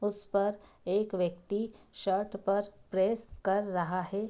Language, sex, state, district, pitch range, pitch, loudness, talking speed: Hindi, female, Bihar, Darbhanga, 190-205 Hz, 200 Hz, -33 LUFS, 125 wpm